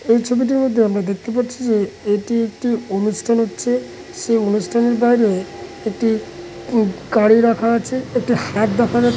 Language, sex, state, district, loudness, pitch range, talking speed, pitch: Bengali, male, West Bengal, Malda, -18 LUFS, 215-240 Hz, 145 wpm, 230 Hz